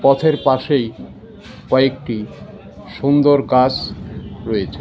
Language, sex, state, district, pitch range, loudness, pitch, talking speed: Bengali, male, West Bengal, Cooch Behar, 130-145 Hz, -17 LUFS, 135 Hz, 85 wpm